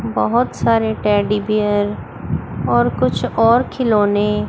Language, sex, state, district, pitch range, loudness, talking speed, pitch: Hindi, female, Chandigarh, Chandigarh, 205-220 Hz, -17 LUFS, 105 wpm, 210 Hz